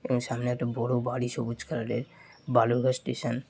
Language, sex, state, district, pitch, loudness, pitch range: Bengali, male, West Bengal, Jalpaiguri, 120 Hz, -29 LUFS, 120-125 Hz